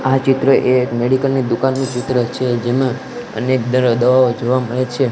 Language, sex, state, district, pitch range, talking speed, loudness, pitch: Gujarati, male, Gujarat, Gandhinagar, 125-130 Hz, 185 wpm, -16 LUFS, 130 Hz